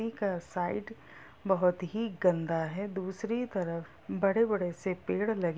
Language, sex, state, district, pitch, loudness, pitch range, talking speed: Hindi, female, Bihar, Sitamarhi, 190 Hz, -32 LUFS, 175-215 Hz, 150 wpm